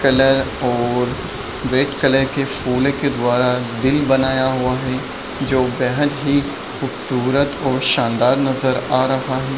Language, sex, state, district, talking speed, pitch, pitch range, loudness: Hindi, male, Bihar, Jamui, 140 wpm, 130 Hz, 125-135 Hz, -18 LUFS